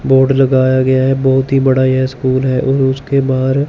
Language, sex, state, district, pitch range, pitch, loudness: Hindi, male, Chandigarh, Chandigarh, 130-135 Hz, 130 Hz, -13 LUFS